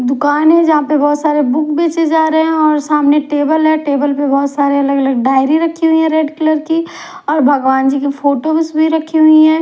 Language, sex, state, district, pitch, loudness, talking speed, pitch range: Hindi, female, Punjab, Fazilka, 300 Hz, -12 LUFS, 235 wpm, 285-315 Hz